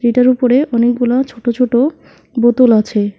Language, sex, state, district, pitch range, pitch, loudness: Bengali, female, West Bengal, Alipurduar, 235-255 Hz, 240 Hz, -13 LUFS